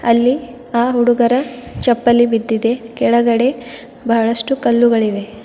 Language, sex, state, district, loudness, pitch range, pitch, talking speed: Kannada, female, Karnataka, Bidar, -15 LUFS, 230-245 Hz, 240 Hz, 90 wpm